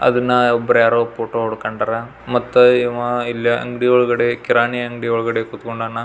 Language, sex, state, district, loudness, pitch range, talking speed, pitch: Kannada, male, Karnataka, Belgaum, -17 LUFS, 115-120 Hz, 140 wpm, 120 Hz